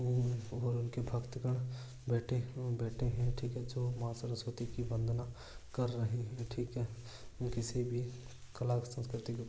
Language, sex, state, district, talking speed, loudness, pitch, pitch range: Marwari, male, Rajasthan, Churu, 165 wpm, -39 LUFS, 120 Hz, 120-125 Hz